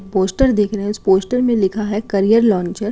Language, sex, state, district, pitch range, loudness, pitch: Hindi, female, Uttar Pradesh, Gorakhpur, 195-220 Hz, -16 LUFS, 210 Hz